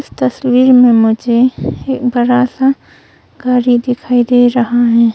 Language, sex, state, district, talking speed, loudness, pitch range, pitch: Hindi, female, Arunachal Pradesh, Longding, 130 wpm, -11 LUFS, 240-250 Hz, 245 Hz